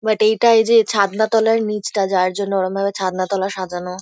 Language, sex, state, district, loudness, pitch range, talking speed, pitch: Bengali, female, West Bengal, Kolkata, -17 LUFS, 190-220 Hz, 150 wpm, 200 Hz